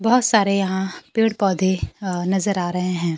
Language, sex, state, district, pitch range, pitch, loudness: Hindi, female, Bihar, Kaimur, 180-210 Hz, 190 Hz, -20 LUFS